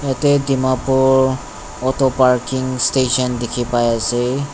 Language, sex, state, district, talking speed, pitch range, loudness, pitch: Nagamese, male, Nagaland, Dimapur, 80 wpm, 120-130 Hz, -17 LUFS, 130 Hz